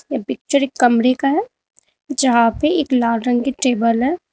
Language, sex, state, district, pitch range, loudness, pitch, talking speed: Hindi, female, Uttar Pradesh, Lalitpur, 240-285 Hz, -17 LUFS, 255 Hz, 195 wpm